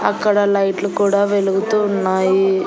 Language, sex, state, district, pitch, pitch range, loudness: Telugu, female, Andhra Pradesh, Annamaya, 200 Hz, 195-205 Hz, -16 LUFS